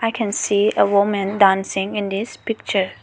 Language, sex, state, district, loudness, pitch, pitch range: English, female, Arunachal Pradesh, Lower Dibang Valley, -19 LUFS, 200 Hz, 195-210 Hz